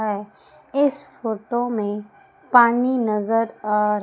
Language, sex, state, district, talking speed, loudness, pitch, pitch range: Hindi, female, Madhya Pradesh, Umaria, 90 wpm, -21 LUFS, 220 Hz, 210-245 Hz